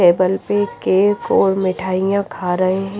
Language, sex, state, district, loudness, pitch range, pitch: Hindi, female, Himachal Pradesh, Shimla, -17 LUFS, 185-200 Hz, 190 Hz